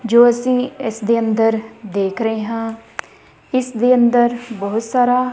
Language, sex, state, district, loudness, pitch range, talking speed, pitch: Punjabi, female, Punjab, Kapurthala, -17 LUFS, 225-245 Hz, 155 wpm, 230 Hz